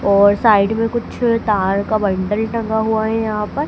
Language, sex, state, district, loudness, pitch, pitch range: Hindi, female, Madhya Pradesh, Dhar, -17 LUFS, 220 Hz, 205-225 Hz